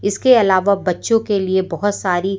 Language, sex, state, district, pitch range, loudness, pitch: Hindi, female, Madhya Pradesh, Umaria, 185-205 Hz, -16 LUFS, 195 Hz